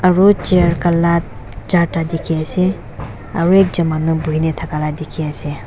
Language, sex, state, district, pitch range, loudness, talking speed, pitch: Nagamese, female, Nagaland, Dimapur, 155-175 Hz, -16 LUFS, 160 wpm, 165 Hz